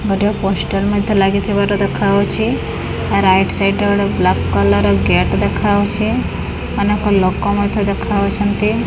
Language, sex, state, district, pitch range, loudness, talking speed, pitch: Odia, female, Odisha, Khordha, 195-205 Hz, -15 LUFS, 115 wpm, 200 Hz